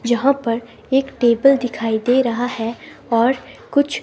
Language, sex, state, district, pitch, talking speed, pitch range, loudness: Hindi, female, Himachal Pradesh, Shimla, 240 Hz, 150 wpm, 230-265 Hz, -18 LUFS